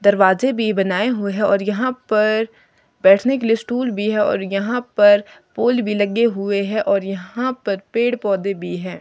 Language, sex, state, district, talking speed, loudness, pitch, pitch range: Hindi, female, Himachal Pradesh, Shimla, 195 wpm, -18 LUFS, 210 Hz, 200-235 Hz